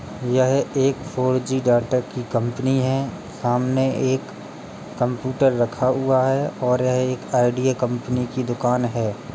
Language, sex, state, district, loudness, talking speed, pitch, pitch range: Hindi, male, Uttar Pradesh, Jalaun, -21 LUFS, 140 wpm, 125 Hz, 120-130 Hz